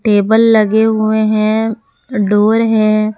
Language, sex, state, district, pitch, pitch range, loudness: Hindi, female, Jharkhand, Palamu, 220 Hz, 215-225 Hz, -12 LUFS